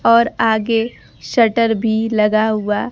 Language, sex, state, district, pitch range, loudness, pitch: Hindi, female, Bihar, Kaimur, 215-230 Hz, -16 LUFS, 225 Hz